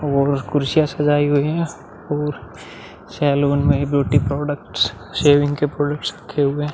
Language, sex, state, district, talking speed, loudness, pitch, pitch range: Hindi, male, Uttar Pradesh, Muzaffarnagar, 140 wpm, -19 LUFS, 145 Hz, 140-150 Hz